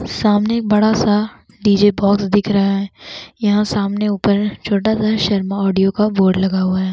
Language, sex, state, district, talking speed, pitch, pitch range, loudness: Hindi, female, Chhattisgarh, Bastar, 180 wpm, 205 Hz, 195-210 Hz, -16 LUFS